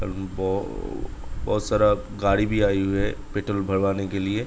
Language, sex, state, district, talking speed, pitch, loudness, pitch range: Hindi, male, Uttar Pradesh, Budaun, 160 wpm, 100 Hz, -24 LUFS, 95-105 Hz